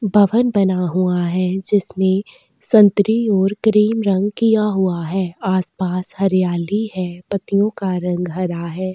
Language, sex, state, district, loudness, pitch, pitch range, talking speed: Hindi, female, Goa, North and South Goa, -17 LUFS, 190 Hz, 180-205 Hz, 135 wpm